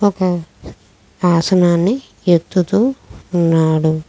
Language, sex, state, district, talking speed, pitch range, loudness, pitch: Telugu, female, Andhra Pradesh, Krishna, 60 wpm, 165-190 Hz, -16 LUFS, 175 Hz